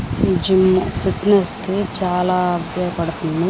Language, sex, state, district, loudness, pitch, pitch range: Telugu, female, Andhra Pradesh, Srikakulam, -18 LUFS, 180 Hz, 175-190 Hz